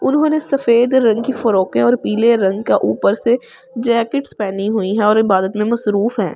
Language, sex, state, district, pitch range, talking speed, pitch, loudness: Hindi, female, Delhi, New Delhi, 200-240 Hz, 200 wpm, 220 Hz, -15 LUFS